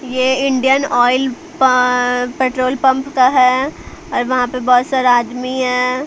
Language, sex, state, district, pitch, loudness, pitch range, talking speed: Hindi, female, Bihar, Patna, 255 Hz, -15 LUFS, 250-265 Hz, 140 wpm